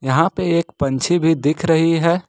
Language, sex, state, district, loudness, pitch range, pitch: Hindi, male, Jharkhand, Ranchi, -17 LUFS, 150-170 Hz, 165 Hz